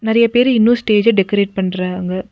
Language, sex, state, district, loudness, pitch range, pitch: Tamil, female, Tamil Nadu, Nilgiris, -15 LUFS, 185-230 Hz, 210 Hz